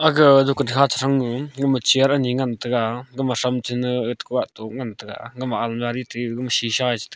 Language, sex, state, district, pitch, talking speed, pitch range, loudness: Wancho, male, Arunachal Pradesh, Longding, 125 Hz, 200 wpm, 120-135 Hz, -21 LUFS